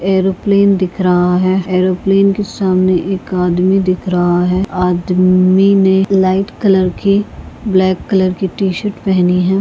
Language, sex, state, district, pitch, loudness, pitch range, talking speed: Hindi, female, Maharashtra, Pune, 185 Hz, -13 LUFS, 185-195 Hz, 150 wpm